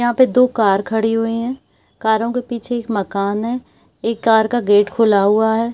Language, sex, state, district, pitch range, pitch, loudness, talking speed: Hindi, female, Jharkhand, Sahebganj, 215-240 Hz, 225 Hz, -17 LUFS, 210 wpm